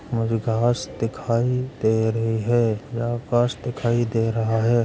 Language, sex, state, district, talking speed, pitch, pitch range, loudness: Hindi, male, Uttar Pradesh, Hamirpur, 150 wpm, 115 Hz, 115-120 Hz, -23 LUFS